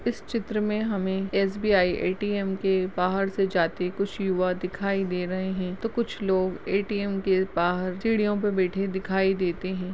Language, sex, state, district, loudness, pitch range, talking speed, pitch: Hindi, female, Uttarakhand, Uttarkashi, -26 LUFS, 185-200 Hz, 175 wpm, 190 Hz